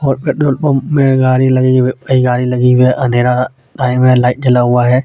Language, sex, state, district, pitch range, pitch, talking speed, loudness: Hindi, male, Jharkhand, Deoghar, 125-130 Hz, 130 Hz, 215 wpm, -12 LUFS